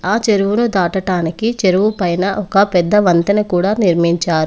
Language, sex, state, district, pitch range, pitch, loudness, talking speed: Telugu, female, Telangana, Komaram Bheem, 175-210 Hz, 190 Hz, -15 LUFS, 135 wpm